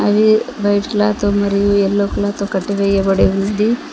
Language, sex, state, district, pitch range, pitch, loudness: Telugu, female, Telangana, Mahabubabad, 200-210 Hz, 205 Hz, -15 LUFS